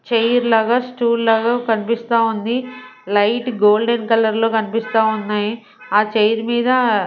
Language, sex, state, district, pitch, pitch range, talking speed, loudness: Telugu, female, Andhra Pradesh, Sri Satya Sai, 225 Hz, 220-240 Hz, 125 wpm, -17 LUFS